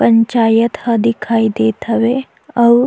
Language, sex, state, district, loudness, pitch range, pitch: Chhattisgarhi, female, Chhattisgarh, Jashpur, -14 LUFS, 225-235 Hz, 230 Hz